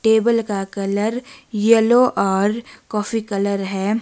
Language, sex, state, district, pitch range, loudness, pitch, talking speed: Hindi, female, Himachal Pradesh, Shimla, 200-230 Hz, -19 LUFS, 215 Hz, 120 wpm